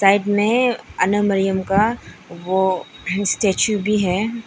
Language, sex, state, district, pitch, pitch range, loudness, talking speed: Hindi, female, Arunachal Pradesh, Lower Dibang Valley, 200 Hz, 190-210 Hz, -19 LUFS, 120 wpm